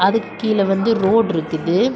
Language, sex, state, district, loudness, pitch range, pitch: Tamil, female, Tamil Nadu, Kanyakumari, -18 LUFS, 180-225 Hz, 200 Hz